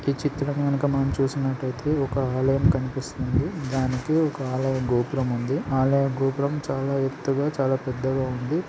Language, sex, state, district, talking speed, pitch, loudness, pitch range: Telugu, male, Andhra Pradesh, Srikakulam, 145 wpm, 135 Hz, -25 LUFS, 130-140 Hz